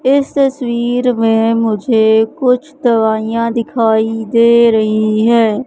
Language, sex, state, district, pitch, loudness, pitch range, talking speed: Hindi, female, Madhya Pradesh, Katni, 230 Hz, -13 LUFS, 220-245 Hz, 105 wpm